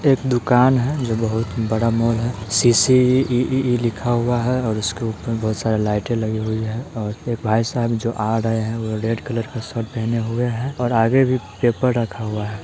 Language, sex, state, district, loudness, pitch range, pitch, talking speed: Hindi, male, Bihar, Sitamarhi, -20 LUFS, 110-125 Hz, 115 Hz, 215 wpm